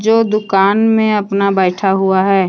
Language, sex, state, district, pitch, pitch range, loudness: Hindi, female, Jharkhand, Deoghar, 200 Hz, 190-215 Hz, -13 LUFS